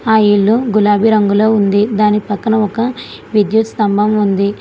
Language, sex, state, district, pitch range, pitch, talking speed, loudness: Telugu, female, Telangana, Hyderabad, 205-220 Hz, 210 Hz, 145 wpm, -13 LUFS